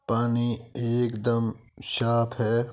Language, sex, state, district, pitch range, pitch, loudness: Hindi, male, Rajasthan, Nagaur, 115-120 Hz, 120 Hz, -26 LUFS